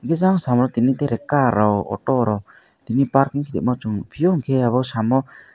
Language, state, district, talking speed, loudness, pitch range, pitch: Kokborok, Tripura, West Tripura, 185 wpm, -20 LUFS, 115-140 Hz, 130 Hz